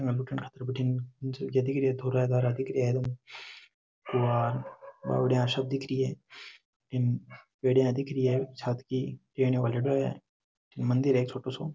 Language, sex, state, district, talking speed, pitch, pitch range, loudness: Rajasthani, male, Rajasthan, Nagaur, 120 wpm, 130 Hz, 125-130 Hz, -30 LUFS